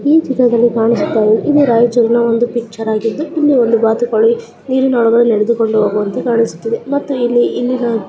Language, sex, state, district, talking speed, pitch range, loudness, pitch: Kannada, male, Karnataka, Raichur, 140 wpm, 225-250 Hz, -13 LUFS, 235 Hz